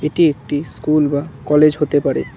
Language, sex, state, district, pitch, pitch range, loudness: Bengali, male, West Bengal, Alipurduar, 150 Hz, 145-150 Hz, -16 LUFS